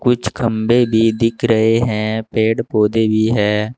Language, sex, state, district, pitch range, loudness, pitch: Hindi, male, Uttar Pradesh, Saharanpur, 110-115 Hz, -16 LUFS, 110 Hz